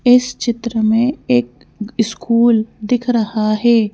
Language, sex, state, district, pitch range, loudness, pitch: Hindi, female, Madhya Pradesh, Bhopal, 215-240 Hz, -16 LUFS, 230 Hz